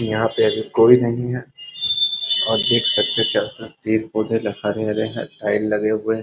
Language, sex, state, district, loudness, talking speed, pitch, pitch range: Hindi, male, Bihar, Muzaffarpur, -19 LUFS, 190 wpm, 110 Hz, 110-115 Hz